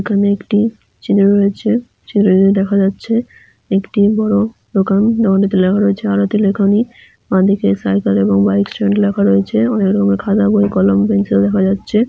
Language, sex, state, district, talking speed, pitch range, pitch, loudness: Bengali, female, West Bengal, Jalpaiguri, 150 wpm, 185-210 Hz, 200 Hz, -14 LUFS